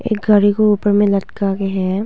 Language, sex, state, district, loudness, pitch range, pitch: Hindi, female, Arunachal Pradesh, Longding, -15 LUFS, 195-210 Hz, 205 Hz